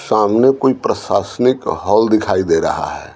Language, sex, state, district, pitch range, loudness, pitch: Hindi, male, Bihar, Patna, 110-130 Hz, -15 LUFS, 125 Hz